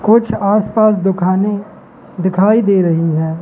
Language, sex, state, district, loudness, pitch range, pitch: Hindi, male, Madhya Pradesh, Katni, -14 LUFS, 185-210 Hz, 200 Hz